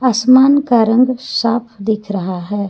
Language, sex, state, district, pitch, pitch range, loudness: Hindi, female, Jharkhand, Garhwa, 230 Hz, 205-255 Hz, -14 LUFS